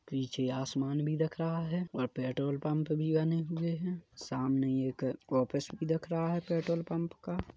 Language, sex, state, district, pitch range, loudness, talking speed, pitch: Hindi, male, Chhattisgarh, Kabirdham, 130-165 Hz, -34 LUFS, 180 wpm, 155 Hz